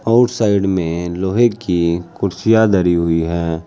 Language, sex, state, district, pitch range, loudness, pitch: Hindi, male, Uttar Pradesh, Saharanpur, 85-110 Hz, -16 LUFS, 95 Hz